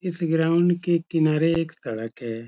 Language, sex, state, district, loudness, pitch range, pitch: Hindi, male, Uttar Pradesh, Etah, -23 LUFS, 140-170 Hz, 165 Hz